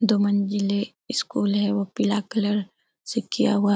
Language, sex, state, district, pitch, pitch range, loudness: Hindi, female, Bihar, Araria, 205 Hz, 200-210 Hz, -24 LUFS